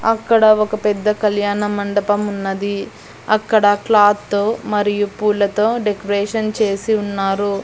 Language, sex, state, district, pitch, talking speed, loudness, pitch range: Telugu, female, Andhra Pradesh, Annamaya, 205 Hz, 110 wpm, -17 LUFS, 205-215 Hz